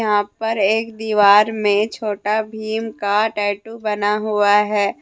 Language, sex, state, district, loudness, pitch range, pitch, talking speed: Hindi, female, Jharkhand, Deoghar, -18 LUFS, 205-220 Hz, 210 Hz, 145 wpm